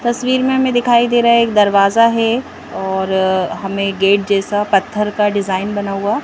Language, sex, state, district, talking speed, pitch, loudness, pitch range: Hindi, female, Madhya Pradesh, Bhopal, 185 wpm, 205 Hz, -15 LUFS, 195-235 Hz